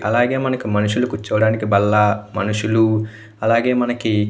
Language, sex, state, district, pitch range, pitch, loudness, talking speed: Telugu, male, Andhra Pradesh, Anantapur, 105-120 Hz, 110 Hz, -18 LUFS, 125 wpm